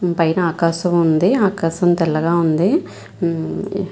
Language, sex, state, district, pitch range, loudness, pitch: Telugu, female, Andhra Pradesh, Visakhapatnam, 165-180 Hz, -17 LUFS, 170 Hz